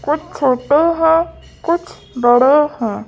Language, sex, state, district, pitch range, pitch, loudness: Hindi, female, Madhya Pradesh, Bhopal, 250-325 Hz, 295 Hz, -15 LUFS